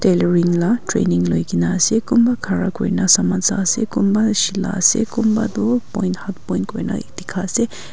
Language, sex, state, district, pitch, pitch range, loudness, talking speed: Nagamese, female, Nagaland, Kohima, 200 Hz, 185-225 Hz, -18 LUFS, 190 wpm